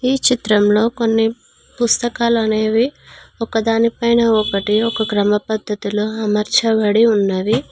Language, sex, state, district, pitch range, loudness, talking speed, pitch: Telugu, female, Telangana, Mahabubabad, 210-230 Hz, -16 LUFS, 100 wpm, 225 Hz